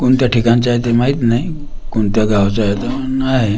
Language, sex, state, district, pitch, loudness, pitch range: Marathi, male, Maharashtra, Gondia, 120 Hz, -15 LUFS, 110-130 Hz